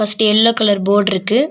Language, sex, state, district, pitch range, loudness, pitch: Tamil, female, Tamil Nadu, Nilgiris, 205-225 Hz, -13 LUFS, 210 Hz